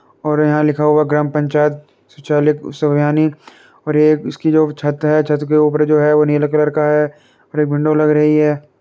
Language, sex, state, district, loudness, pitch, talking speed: Hindi, male, Uttar Pradesh, Muzaffarnagar, -15 LUFS, 150 Hz, 195 wpm